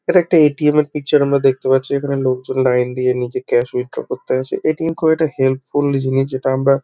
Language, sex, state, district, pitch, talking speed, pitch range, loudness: Bengali, male, West Bengal, Kolkata, 135 Hz, 210 wpm, 130-150 Hz, -17 LUFS